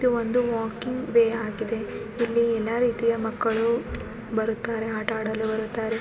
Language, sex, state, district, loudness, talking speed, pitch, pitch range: Kannada, female, Karnataka, Bijapur, -26 LUFS, 120 wpm, 225 Hz, 220-235 Hz